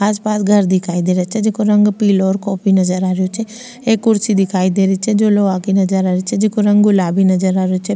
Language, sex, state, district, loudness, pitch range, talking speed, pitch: Rajasthani, female, Rajasthan, Nagaur, -14 LUFS, 185-210 Hz, 265 wpm, 195 Hz